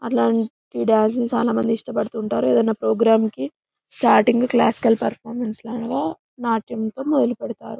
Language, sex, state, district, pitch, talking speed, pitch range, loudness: Telugu, female, Telangana, Karimnagar, 230 Hz, 145 wpm, 220-240 Hz, -20 LUFS